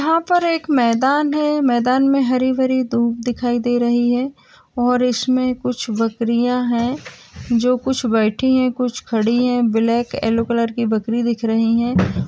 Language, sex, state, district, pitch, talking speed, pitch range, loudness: Hindi, female, Bihar, Gaya, 245 Hz, 160 wpm, 235-260 Hz, -18 LUFS